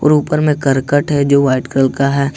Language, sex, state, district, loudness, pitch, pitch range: Hindi, male, Jharkhand, Ranchi, -14 LUFS, 140 Hz, 135-150 Hz